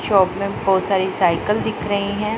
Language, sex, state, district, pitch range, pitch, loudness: Hindi, female, Punjab, Pathankot, 190-205 Hz, 195 Hz, -19 LUFS